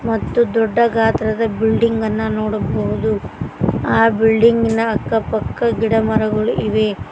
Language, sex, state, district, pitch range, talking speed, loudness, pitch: Kannada, female, Karnataka, Koppal, 220-230 Hz, 120 wpm, -17 LUFS, 225 Hz